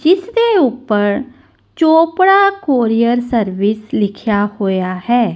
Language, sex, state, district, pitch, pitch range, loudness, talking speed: Punjabi, female, Punjab, Kapurthala, 240 Hz, 205-330 Hz, -14 LUFS, 100 wpm